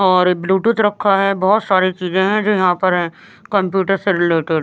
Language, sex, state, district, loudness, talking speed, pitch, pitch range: Hindi, male, Bihar, West Champaran, -16 LUFS, 205 wpm, 190 Hz, 180-200 Hz